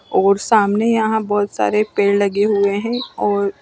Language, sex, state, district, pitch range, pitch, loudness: Hindi, female, Chandigarh, Chandigarh, 200-220 Hz, 205 Hz, -17 LUFS